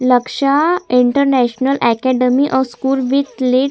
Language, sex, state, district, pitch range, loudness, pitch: Hindi, female, Chhattisgarh, Sukma, 250-275 Hz, -15 LUFS, 260 Hz